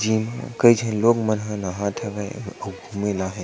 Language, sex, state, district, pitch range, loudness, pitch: Chhattisgarhi, male, Chhattisgarh, Sukma, 100-115 Hz, -23 LUFS, 105 Hz